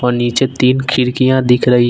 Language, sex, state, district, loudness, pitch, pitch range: Hindi, male, Jharkhand, Ranchi, -13 LUFS, 125 Hz, 125-130 Hz